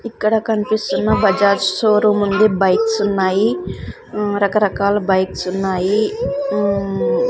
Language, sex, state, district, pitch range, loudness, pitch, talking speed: Telugu, female, Andhra Pradesh, Sri Satya Sai, 195-215 Hz, -17 LUFS, 205 Hz, 100 wpm